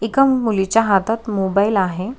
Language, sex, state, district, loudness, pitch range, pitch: Marathi, female, Maharashtra, Solapur, -17 LUFS, 195-225 Hz, 215 Hz